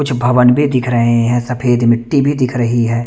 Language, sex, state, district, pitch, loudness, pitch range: Hindi, male, Chandigarh, Chandigarh, 125 Hz, -13 LUFS, 120-130 Hz